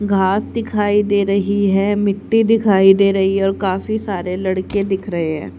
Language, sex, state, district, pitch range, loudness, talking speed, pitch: Hindi, female, Haryana, Charkhi Dadri, 190-205 Hz, -16 LUFS, 180 wpm, 195 Hz